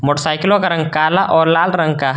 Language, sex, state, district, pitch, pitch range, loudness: Hindi, male, Jharkhand, Garhwa, 160 Hz, 155-175 Hz, -14 LUFS